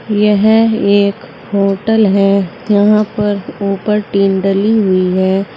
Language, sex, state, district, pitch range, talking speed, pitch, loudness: Hindi, female, Uttar Pradesh, Saharanpur, 195-215 Hz, 120 wpm, 205 Hz, -12 LUFS